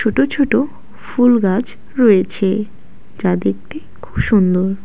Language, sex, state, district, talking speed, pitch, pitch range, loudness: Bengali, female, West Bengal, Alipurduar, 100 wpm, 210 Hz, 190-245 Hz, -16 LUFS